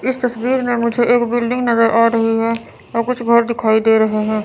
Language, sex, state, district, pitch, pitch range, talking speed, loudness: Hindi, female, Chandigarh, Chandigarh, 235 Hz, 225-240 Hz, 230 wpm, -16 LUFS